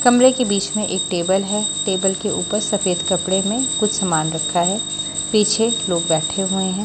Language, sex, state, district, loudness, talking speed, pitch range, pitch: Hindi, female, Haryana, Charkhi Dadri, -17 LUFS, 195 wpm, 180-210 Hz, 195 Hz